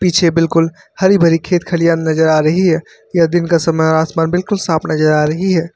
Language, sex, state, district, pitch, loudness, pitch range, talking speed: Hindi, male, Uttar Pradesh, Lucknow, 165 Hz, -14 LUFS, 160-175 Hz, 230 wpm